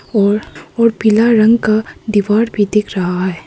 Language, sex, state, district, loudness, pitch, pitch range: Hindi, female, Arunachal Pradesh, Papum Pare, -14 LUFS, 210 Hz, 200-225 Hz